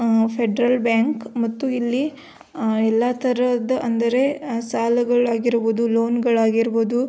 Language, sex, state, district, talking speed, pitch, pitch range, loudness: Kannada, female, Karnataka, Belgaum, 125 wpm, 235 Hz, 230-250 Hz, -20 LUFS